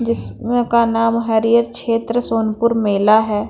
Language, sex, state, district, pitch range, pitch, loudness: Hindi, female, Bihar, Patna, 220-235 Hz, 230 Hz, -16 LUFS